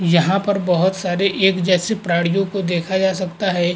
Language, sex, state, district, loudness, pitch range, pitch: Hindi, male, Uttar Pradesh, Muzaffarnagar, -18 LUFS, 175-195 Hz, 185 Hz